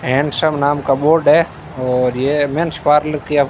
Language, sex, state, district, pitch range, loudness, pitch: Hindi, male, Rajasthan, Bikaner, 135-150 Hz, -15 LUFS, 145 Hz